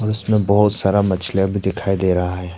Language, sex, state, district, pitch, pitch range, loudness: Hindi, male, Arunachal Pradesh, Papum Pare, 95 Hz, 95-105 Hz, -18 LUFS